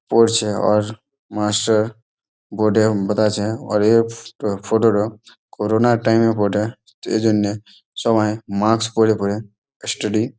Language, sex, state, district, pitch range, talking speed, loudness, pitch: Bengali, male, West Bengal, Malda, 105-115 Hz, 140 wpm, -19 LUFS, 110 Hz